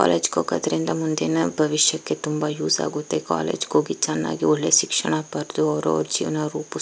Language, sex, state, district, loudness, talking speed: Kannada, female, Karnataka, Chamarajanagar, -22 LUFS, 165 wpm